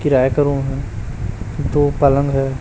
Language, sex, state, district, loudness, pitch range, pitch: Hindi, male, Chhattisgarh, Raipur, -18 LUFS, 125-140 Hz, 135 Hz